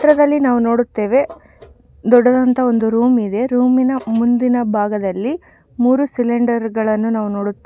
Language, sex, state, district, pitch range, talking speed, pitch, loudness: Kannada, female, Karnataka, Mysore, 225-255 Hz, 135 wpm, 240 Hz, -16 LUFS